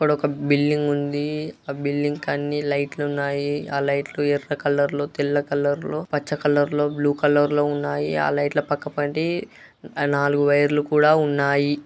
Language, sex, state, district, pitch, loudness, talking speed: Telugu, male, Andhra Pradesh, Guntur, 145 Hz, -22 LUFS, 180 wpm